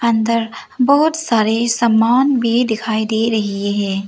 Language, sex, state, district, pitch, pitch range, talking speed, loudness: Hindi, female, Arunachal Pradesh, Lower Dibang Valley, 230 Hz, 220-240 Hz, 135 wpm, -16 LUFS